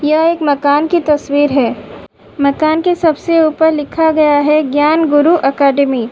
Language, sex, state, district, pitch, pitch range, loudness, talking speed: Hindi, female, Uttar Pradesh, Budaun, 300 Hz, 285-320 Hz, -12 LUFS, 165 wpm